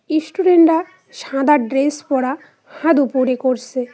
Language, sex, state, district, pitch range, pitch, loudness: Bengali, female, West Bengal, Cooch Behar, 260-320 Hz, 290 Hz, -16 LUFS